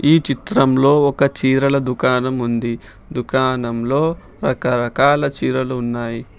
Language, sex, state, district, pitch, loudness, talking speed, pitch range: Telugu, male, Telangana, Hyderabad, 130 Hz, -17 LUFS, 95 wpm, 120-140 Hz